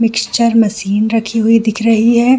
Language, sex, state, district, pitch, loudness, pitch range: Hindi, female, Jharkhand, Jamtara, 225 Hz, -13 LUFS, 220-230 Hz